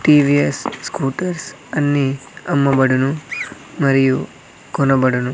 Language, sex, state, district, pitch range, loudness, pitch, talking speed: Telugu, male, Andhra Pradesh, Sri Satya Sai, 135-145 Hz, -17 LUFS, 140 Hz, 65 wpm